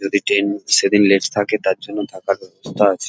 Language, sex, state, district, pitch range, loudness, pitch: Bengali, male, West Bengal, Jhargram, 100-105 Hz, -17 LUFS, 100 Hz